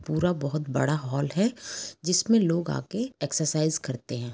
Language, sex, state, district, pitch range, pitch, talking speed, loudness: Hindi, female, Jharkhand, Sahebganj, 140-180 Hz, 155 Hz, 140 wpm, -27 LUFS